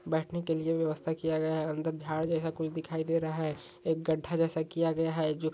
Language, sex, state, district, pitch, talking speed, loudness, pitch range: Hindi, male, Rajasthan, Churu, 160 Hz, 250 wpm, -32 LUFS, 155-165 Hz